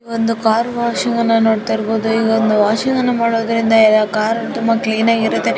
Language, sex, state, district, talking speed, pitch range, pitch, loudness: Kannada, female, Karnataka, Raichur, 140 wpm, 220-230 Hz, 225 Hz, -15 LUFS